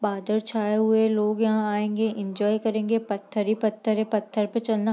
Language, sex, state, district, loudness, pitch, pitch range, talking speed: Hindi, female, Bihar, East Champaran, -25 LUFS, 215 Hz, 210-220 Hz, 205 wpm